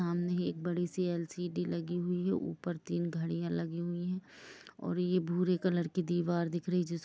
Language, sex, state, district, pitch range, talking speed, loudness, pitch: Hindi, female, Chhattisgarh, Rajnandgaon, 170-180 Hz, 215 wpm, -35 LUFS, 175 Hz